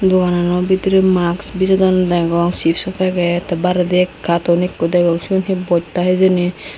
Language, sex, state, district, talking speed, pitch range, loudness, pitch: Chakma, female, Tripura, Unakoti, 150 wpm, 175-185 Hz, -15 LUFS, 180 Hz